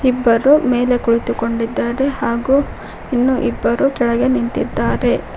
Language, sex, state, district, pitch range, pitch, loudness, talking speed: Kannada, female, Karnataka, Koppal, 235-265 Hz, 250 Hz, -16 LUFS, 90 wpm